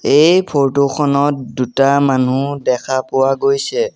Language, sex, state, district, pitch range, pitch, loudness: Assamese, male, Assam, Sonitpur, 130-140 Hz, 140 Hz, -15 LUFS